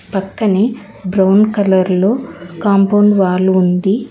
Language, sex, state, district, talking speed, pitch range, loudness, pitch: Telugu, female, Telangana, Hyderabad, 100 wpm, 185-205 Hz, -13 LUFS, 195 Hz